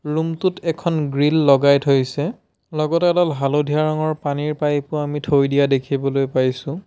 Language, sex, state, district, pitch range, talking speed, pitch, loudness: Assamese, male, Assam, Sonitpur, 140-155 Hz, 155 wpm, 150 Hz, -19 LUFS